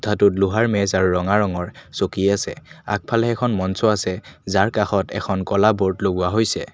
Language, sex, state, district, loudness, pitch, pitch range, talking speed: Assamese, male, Assam, Kamrup Metropolitan, -20 LUFS, 100 Hz, 95-105 Hz, 170 wpm